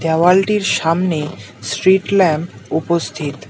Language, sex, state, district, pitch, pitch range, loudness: Bengali, male, West Bengal, Alipurduar, 165 Hz, 150-185 Hz, -16 LUFS